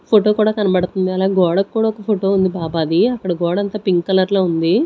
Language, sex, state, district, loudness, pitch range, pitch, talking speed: Telugu, female, Andhra Pradesh, Sri Satya Sai, -17 LUFS, 180-210 Hz, 190 Hz, 220 wpm